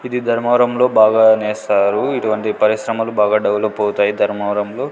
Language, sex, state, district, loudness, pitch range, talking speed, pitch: Telugu, male, Andhra Pradesh, Sri Satya Sai, -15 LUFS, 105-115 Hz, 120 wpm, 110 Hz